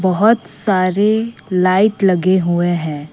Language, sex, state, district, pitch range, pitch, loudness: Hindi, female, Assam, Kamrup Metropolitan, 175-205 Hz, 185 Hz, -15 LUFS